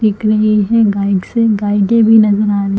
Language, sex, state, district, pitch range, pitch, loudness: Hindi, female, Chhattisgarh, Bilaspur, 205-220 Hz, 210 Hz, -12 LUFS